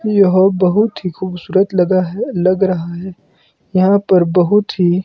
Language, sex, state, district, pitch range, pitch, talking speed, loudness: Hindi, male, Himachal Pradesh, Shimla, 180-195 Hz, 185 Hz, 155 wpm, -14 LUFS